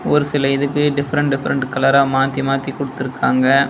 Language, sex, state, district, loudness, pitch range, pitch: Tamil, male, Tamil Nadu, Nilgiris, -17 LUFS, 135-140 Hz, 135 Hz